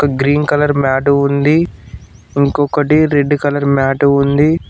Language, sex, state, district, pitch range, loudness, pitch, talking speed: Telugu, male, Telangana, Mahabubabad, 140-145 Hz, -13 LUFS, 140 Hz, 115 wpm